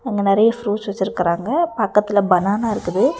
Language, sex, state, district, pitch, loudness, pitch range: Tamil, female, Tamil Nadu, Nilgiris, 210 Hz, -18 LUFS, 195-220 Hz